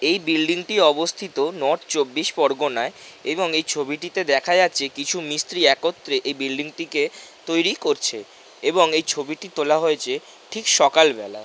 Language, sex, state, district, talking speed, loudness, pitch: Bengali, male, West Bengal, North 24 Parganas, 140 wpm, -21 LUFS, 180 Hz